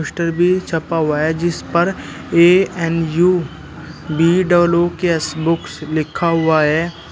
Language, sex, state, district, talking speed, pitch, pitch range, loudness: Hindi, male, Uttar Pradesh, Shamli, 135 wpm, 165 Hz, 160-175 Hz, -16 LUFS